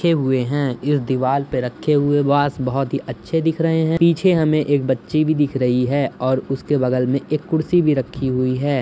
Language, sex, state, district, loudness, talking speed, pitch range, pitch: Hindi, male, Uttar Pradesh, Budaun, -19 LUFS, 225 wpm, 130-155 Hz, 140 Hz